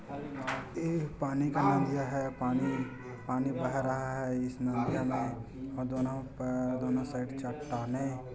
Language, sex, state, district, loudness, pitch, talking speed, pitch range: Hindi, male, Chhattisgarh, Korba, -34 LUFS, 130 Hz, 135 wpm, 125-135 Hz